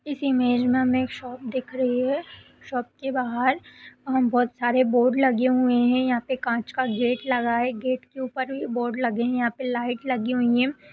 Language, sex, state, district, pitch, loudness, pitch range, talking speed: Hindi, female, Uttar Pradesh, Etah, 250 Hz, -24 LUFS, 245-260 Hz, 215 wpm